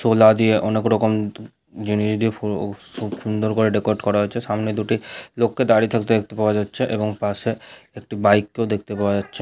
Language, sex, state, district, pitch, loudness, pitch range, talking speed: Bengali, male, West Bengal, Paschim Medinipur, 110 Hz, -20 LUFS, 105-110 Hz, 180 wpm